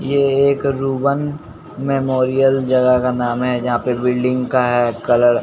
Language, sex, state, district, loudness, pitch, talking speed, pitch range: Hindi, male, Bihar, Patna, -17 LUFS, 125 Hz, 165 wpm, 120-135 Hz